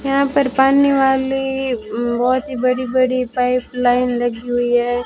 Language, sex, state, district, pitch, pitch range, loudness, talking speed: Hindi, female, Rajasthan, Bikaner, 255 Hz, 245-265 Hz, -17 LUFS, 140 wpm